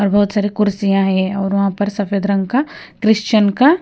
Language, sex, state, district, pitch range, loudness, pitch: Hindi, female, Punjab, Kapurthala, 195-215 Hz, -16 LUFS, 205 Hz